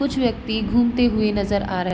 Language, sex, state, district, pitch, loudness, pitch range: Hindi, female, Uttar Pradesh, Varanasi, 220 Hz, -21 LUFS, 205-240 Hz